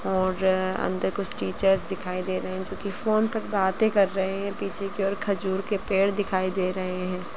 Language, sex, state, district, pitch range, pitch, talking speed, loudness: Hindi, female, Bihar, Gaya, 185-200 Hz, 195 Hz, 210 wpm, -26 LUFS